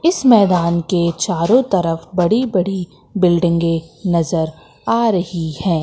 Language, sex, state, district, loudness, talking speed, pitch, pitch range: Hindi, female, Madhya Pradesh, Katni, -16 LUFS, 125 wpm, 180 Hz, 170-195 Hz